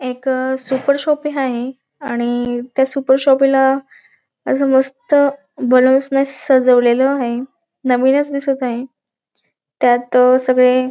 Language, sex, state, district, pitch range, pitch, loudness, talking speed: Marathi, female, Maharashtra, Dhule, 250-275 Hz, 265 Hz, -15 LUFS, 120 wpm